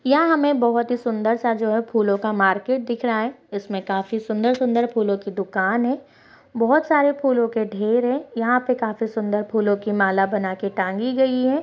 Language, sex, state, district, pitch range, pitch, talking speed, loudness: Hindi, female, Bihar, Jamui, 210-255 Hz, 230 Hz, 215 wpm, -21 LUFS